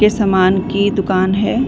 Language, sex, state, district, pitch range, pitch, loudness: Hindi, female, Chhattisgarh, Bilaspur, 190-210 Hz, 200 Hz, -15 LUFS